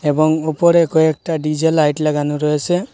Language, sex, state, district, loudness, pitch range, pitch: Bengali, male, Assam, Hailakandi, -16 LUFS, 150-160 Hz, 155 Hz